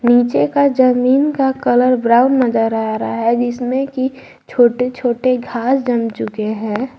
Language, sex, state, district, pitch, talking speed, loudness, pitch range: Hindi, female, Jharkhand, Garhwa, 245 Hz, 155 wpm, -15 LUFS, 235-260 Hz